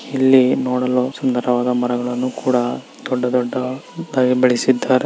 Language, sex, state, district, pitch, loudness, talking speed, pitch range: Kannada, male, Karnataka, Mysore, 125 Hz, -18 LUFS, 105 wpm, 125-130 Hz